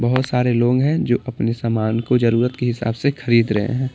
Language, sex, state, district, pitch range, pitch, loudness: Hindi, male, Bihar, Patna, 115-125 Hz, 120 Hz, -19 LUFS